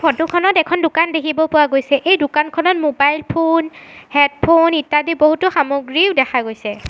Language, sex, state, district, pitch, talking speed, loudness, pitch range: Assamese, female, Assam, Sonitpur, 315 Hz, 150 wpm, -15 LUFS, 285-330 Hz